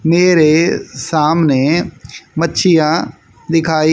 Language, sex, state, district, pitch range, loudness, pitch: Hindi, female, Haryana, Jhajjar, 155-165 Hz, -13 LUFS, 160 Hz